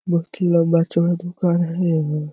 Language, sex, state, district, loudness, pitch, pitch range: Hindi, male, Chhattisgarh, Korba, -19 LUFS, 170 Hz, 165-175 Hz